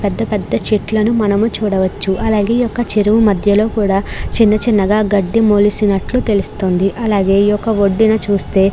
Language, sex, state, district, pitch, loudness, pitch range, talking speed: Telugu, female, Andhra Pradesh, Krishna, 210 Hz, -14 LUFS, 200-220 Hz, 165 wpm